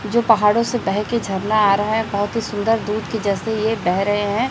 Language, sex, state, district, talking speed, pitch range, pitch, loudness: Hindi, male, Chhattisgarh, Raipur, 240 wpm, 205-225 Hz, 215 Hz, -19 LUFS